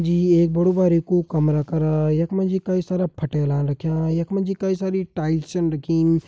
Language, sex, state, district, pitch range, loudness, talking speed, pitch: Hindi, male, Uttarakhand, Uttarkashi, 155-185 Hz, -21 LUFS, 200 wpm, 170 Hz